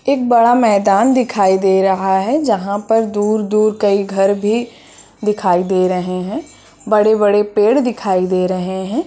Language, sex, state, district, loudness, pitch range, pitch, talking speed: Hindi, female, Bihar, Purnia, -15 LUFS, 190-225 Hz, 205 Hz, 150 wpm